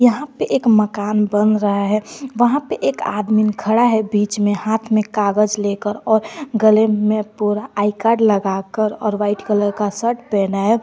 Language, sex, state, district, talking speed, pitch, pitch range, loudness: Hindi, female, Jharkhand, Garhwa, 185 wpm, 215 Hz, 205-225 Hz, -17 LUFS